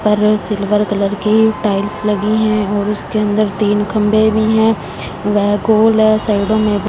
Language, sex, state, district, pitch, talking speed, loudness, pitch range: Hindi, female, Punjab, Fazilka, 210 Hz, 155 wpm, -14 LUFS, 205-215 Hz